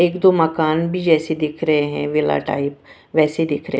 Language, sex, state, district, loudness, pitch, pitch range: Hindi, female, Punjab, Kapurthala, -19 LUFS, 155 Hz, 145-165 Hz